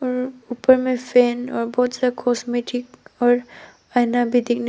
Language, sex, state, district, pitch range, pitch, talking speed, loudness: Hindi, female, Arunachal Pradesh, Papum Pare, 245-250 Hz, 245 Hz, 155 wpm, -20 LUFS